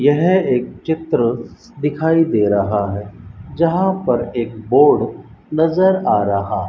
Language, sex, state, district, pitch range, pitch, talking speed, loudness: Hindi, male, Rajasthan, Bikaner, 105-160 Hz, 125 Hz, 135 wpm, -17 LUFS